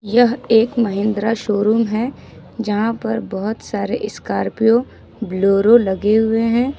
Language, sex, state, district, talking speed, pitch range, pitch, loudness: Hindi, female, Jharkhand, Ranchi, 125 wpm, 210-230 Hz, 225 Hz, -17 LUFS